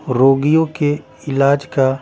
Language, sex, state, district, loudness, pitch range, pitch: Hindi, male, Bihar, Patna, -16 LUFS, 135-145 Hz, 140 Hz